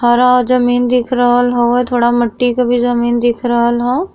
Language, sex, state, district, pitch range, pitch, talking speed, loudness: Bhojpuri, female, Uttar Pradesh, Gorakhpur, 240-250 Hz, 245 Hz, 200 wpm, -13 LUFS